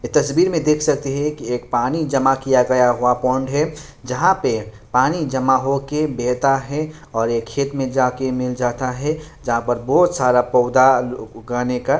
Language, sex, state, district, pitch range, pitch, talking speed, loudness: Hindi, male, Bihar, Kishanganj, 125-145 Hz, 130 Hz, 190 wpm, -19 LUFS